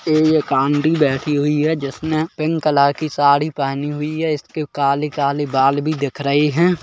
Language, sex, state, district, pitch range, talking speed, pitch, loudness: Hindi, male, Chhattisgarh, Kabirdham, 140-155 Hz, 185 wpm, 150 Hz, -18 LUFS